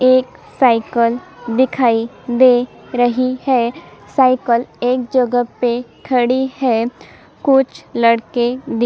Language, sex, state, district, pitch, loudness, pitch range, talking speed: Hindi, female, Chhattisgarh, Sukma, 245 Hz, -16 LUFS, 240-255 Hz, 110 wpm